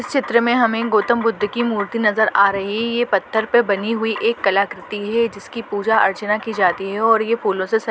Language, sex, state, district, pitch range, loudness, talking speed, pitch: Hindi, female, Chhattisgarh, Bastar, 205-230 Hz, -18 LUFS, 225 wpm, 220 Hz